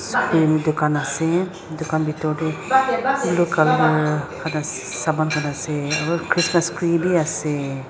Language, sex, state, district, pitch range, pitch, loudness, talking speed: Nagamese, female, Nagaland, Dimapur, 150-170 Hz, 155 Hz, -20 LUFS, 115 wpm